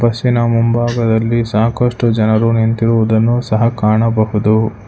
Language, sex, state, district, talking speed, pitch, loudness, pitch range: Kannada, male, Karnataka, Bangalore, 85 wpm, 115 Hz, -14 LUFS, 110-120 Hz